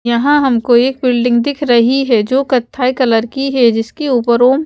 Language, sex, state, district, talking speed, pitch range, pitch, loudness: Hindi, female, Haryana, Jhajjar, 205 wpm, 235-270 Hz, 250 Hz, -13 LUFS